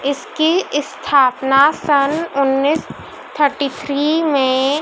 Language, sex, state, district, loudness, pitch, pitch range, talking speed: Hindi, female, Madhya Pradesh, Dhar, -16 LUFS, 285 Hz, 275-300 Hz, 85 wpm